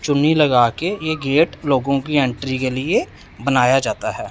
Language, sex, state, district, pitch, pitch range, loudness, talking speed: Hindi, male, Punjab, Pathankot, 140 Hz, 130-160 Hz, -18 LUFS, 180 wpm